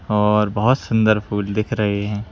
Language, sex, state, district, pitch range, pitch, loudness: Hindi, male, Madhya Pradesh, Bhopal, 105-110 Hz, 105 Hz, -19 LUFS